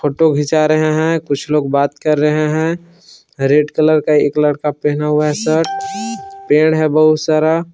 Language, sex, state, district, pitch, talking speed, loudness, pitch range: Hindi, male, Jharkhand, Palamu, 155 Hz, 180 wpm, -14 LUFS, 150-160 Hz